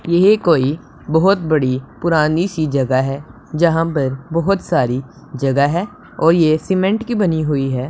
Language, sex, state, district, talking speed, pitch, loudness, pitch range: Hindi, male, Punjab, Pathankot, 165 wpm, 160 Hz, -17 LUFS, 135-175 Hz